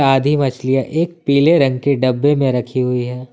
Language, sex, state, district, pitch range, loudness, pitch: Hindi, male, Jharkhand, Ranchi, 125-145 Hz, -16 LUFS, 135 Hz